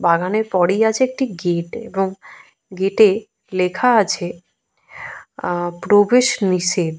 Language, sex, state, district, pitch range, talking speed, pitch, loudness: Bengali, female, Jharkhand, Jamtara, 175-225 Hz, 110 wpm, 195 Hz, -18 LUFS